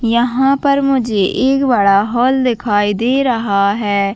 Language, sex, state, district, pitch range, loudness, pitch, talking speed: Hindi, female, Chhattisgarh, Bastar, 205-260 Hz, -14 LUFS, 235 Hz, 145 wpm